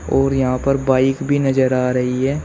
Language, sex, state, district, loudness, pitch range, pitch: Hindi, male, Uttar Pradesh, Shamli, -17 LUFS, 130-135 Hz, 135 Hz